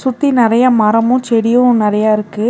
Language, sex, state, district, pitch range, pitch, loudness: Tamil, female, Tamil Nadu, Nilgiris, 215-250 Hz, 230 Hz, -12 LUFS